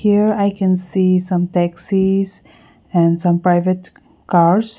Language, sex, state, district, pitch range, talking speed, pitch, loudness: English, female, Nagaland, Kohima, 175-195 Hz, 125 wpm, 185 Hz, -16 LUFS